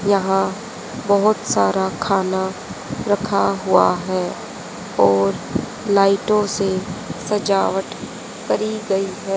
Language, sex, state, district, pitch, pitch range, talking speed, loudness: Hindi, female, Haryana, Charkhi Dadri, 195 Hz, 185-205 Hz, 90 wpm, -19 LUFS